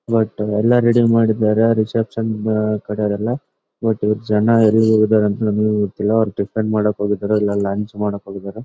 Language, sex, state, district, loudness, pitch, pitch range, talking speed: Kannada, male, Karnataka, Bellary, -17 LUFS, 110 Hz, 105-110 Hz, 125 wpm